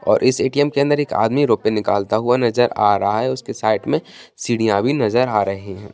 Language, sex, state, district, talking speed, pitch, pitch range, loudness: Hindi, male, Bihar, Bhagalpur, 230 wpm, 115 Hz, 105-130 Hz, -18 LUFS